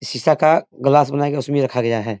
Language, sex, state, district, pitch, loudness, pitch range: Hindi, male, Bihar, Sitamarhi, 135 Hz, -17 LUFS, 125-145 Hz